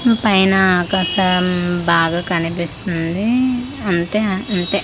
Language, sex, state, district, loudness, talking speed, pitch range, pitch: Telugu, female, Andhra Pradesh, Manyam, -16 LUFS, 75 wpm, 175-205 Hz, 185 Hz